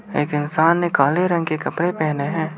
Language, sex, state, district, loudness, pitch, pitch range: Hindi, male, Arunachal Pradesh, Lower Dibang Valley, -19 LUFS, 160 Hz, 150-175 Hz